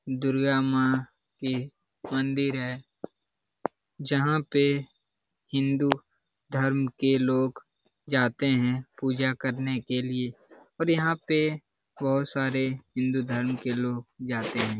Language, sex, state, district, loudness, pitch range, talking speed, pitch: Hindi, male, Bihar, Lakhisarai, -27 LUFS, 125-140 Hz, 120 wpm, 130 Hz